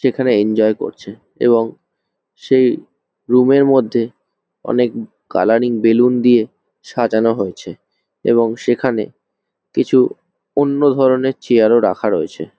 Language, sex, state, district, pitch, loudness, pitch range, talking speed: Bengali, male, West Bengal, Jhargram, 120 Hz, -15 LUFS, 115-130 Hz, 105 wpm